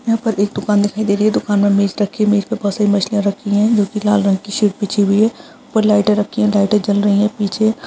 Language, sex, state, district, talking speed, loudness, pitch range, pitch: Hindi, female, Uttar Pradesh, Budaun, 310 wpm, -16 LUFS, 205-215 Hz, 205 Hz